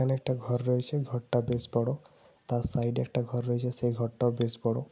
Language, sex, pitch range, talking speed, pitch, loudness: Bengali, male, 120-125 Hz, 185 wpm, 120 Hz, -30 LUFS